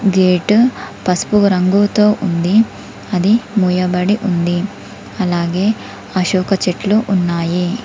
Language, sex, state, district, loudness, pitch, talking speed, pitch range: Telugu, female, Telangana, Komaram Bheem, -15 LUFS, 190 Hz, 85 wpm, 180-210 Hz